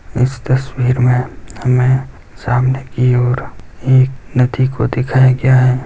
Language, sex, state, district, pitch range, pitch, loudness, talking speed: Hindi, male, Bihar, Darbhanga, 125-130 Hz, 125 Hz, -14 LUFS, 135 wpm